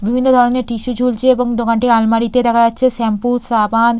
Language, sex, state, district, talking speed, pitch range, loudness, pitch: Bengali, female, West Bengal, Purulia, 165 wpm, 230-250 Hz, -14 LUFS, 235 Hz